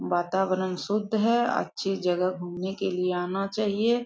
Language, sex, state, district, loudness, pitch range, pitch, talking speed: Hindi, female, Jharkhand, Sahebganj, -27 LUFS, 180-215 Hz, 190 Hz, 150 wpm